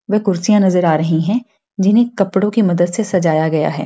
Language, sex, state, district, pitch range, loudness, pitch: Hindi, female, Bihar, Bhagalpur, 170-215 Hz, -15 LUFS, 195 Hz